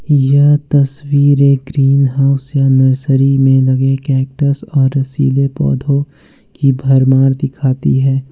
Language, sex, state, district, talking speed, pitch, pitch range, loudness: Hindi, male, Jharkhand, Ranchi, 110 wpm, 135 Hz, 135-140 Hz, -12 LUFS